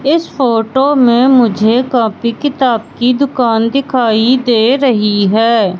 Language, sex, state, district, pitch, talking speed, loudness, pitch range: Hindi, female, Madhya Pradesh, Katni, 240 Hz, 125 wpm, -11 LUFS, 225-265 Hz